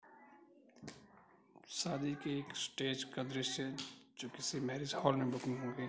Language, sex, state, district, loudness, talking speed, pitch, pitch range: Hindi, male, Uttar Pradesh, Varanasi, -40 LUFS, 130 wpm, 135 Hz, 130-140 Hz